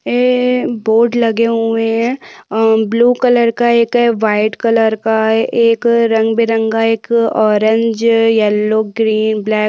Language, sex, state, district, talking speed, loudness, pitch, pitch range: Hindi, female, Chhattisgarh, Korba, 140 wpm, -13 LUFS, 225 Hz, 220-235 Hz